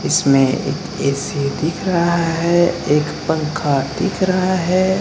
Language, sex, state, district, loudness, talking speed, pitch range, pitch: Hindi, male, Bihar, Saran, -17 LUFS, 130 wpm, 145-185 Hz, 165 Hz